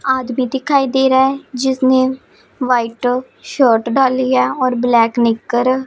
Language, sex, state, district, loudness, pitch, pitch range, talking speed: Hindi, female, Punjab, Pathankot, -15 LUFS, 255 Hz, 245-265 Hz, 135 wpm